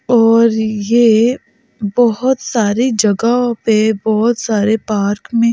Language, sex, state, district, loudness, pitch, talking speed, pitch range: Hindi, female, Delhi, New Delhi, -14 LUFS, 225 Hz, 110 wpm, 220-235 Hz